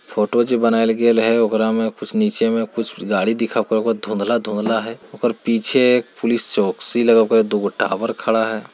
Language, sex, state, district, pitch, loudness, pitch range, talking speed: Hindi, male, Bihar, Jamui, 115 Hz, -18 LUFS, 110-115 Hz, 185 wpm